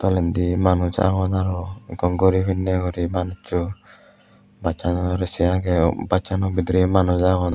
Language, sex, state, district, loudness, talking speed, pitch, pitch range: Chakma, male, Tripura, West Tripura, -21 LUFS, 150 wpm, 90 Hz, 90-95 Hz